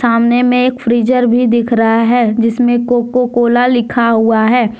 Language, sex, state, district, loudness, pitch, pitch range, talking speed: Hindi, female, Jharkhand, Deoghar, -12 LUFS, 240 Hz, 230-245 Hz, 150 wpm